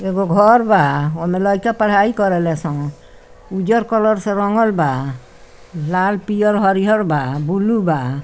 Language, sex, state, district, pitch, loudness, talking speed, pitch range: Bhojpuri, female, Bihar, Muzaffarpur, 190 Hz, -16 LUFS, 155 wpm, 145-210 Hz